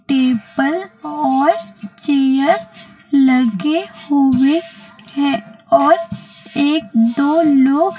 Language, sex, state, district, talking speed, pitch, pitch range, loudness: Hindi, female, Chhattisgarh, Raipur, 75 wpm, 275 Hz, 235-305 Hz, -15 LUFS